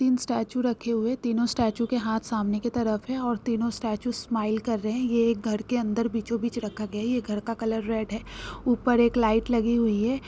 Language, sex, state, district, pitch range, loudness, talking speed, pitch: Marwari, female, Rajasthan, Nagaur, 220-240 Hz, -26 LUFS, 240 wpm, 230 Hz